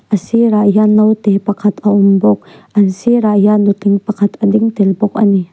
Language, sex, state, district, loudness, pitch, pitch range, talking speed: Mizo, female, Mizoram, Aizawl, -12 LUFS, 205 Hz, 200-215 Hz, 205 wpm